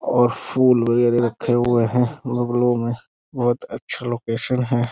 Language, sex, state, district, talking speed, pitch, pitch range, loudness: Hindi, male, Bihar, Muzaffarpur, 145 wpm, 120 Hz, 120-125 Hz, -20 LUFS